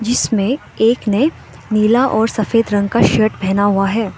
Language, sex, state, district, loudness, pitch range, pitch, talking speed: Hindi, female, Arunachal Pradesh, Lower Dibang Valley, -15 LUFS, 205-230 Hz, 220 Hz, 170 wpm